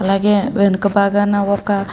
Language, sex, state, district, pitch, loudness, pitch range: Telugu, female, Andhra Pradesh, Srikakulam, 200 Hz, -16 LUFS, 200-205 Hz